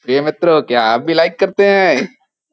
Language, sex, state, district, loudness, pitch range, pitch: Hindi, male, Uttar Pradesh, Hamirpur, -13 LUFS, 140-195 Hz, 165 Hz